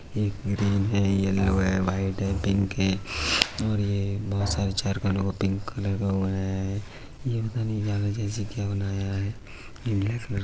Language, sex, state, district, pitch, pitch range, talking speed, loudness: Hindi, male, Uttar Pradesh, Budaun, 100 Hz, 95-100 Hz, 185 wpm, -27 LUFS